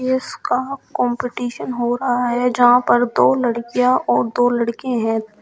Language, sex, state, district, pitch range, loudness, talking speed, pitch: Hindi, female, Uttar Pradesh, Shamli, 240-250 Hz, -18 LUFS, 155 wpm, 245 Hz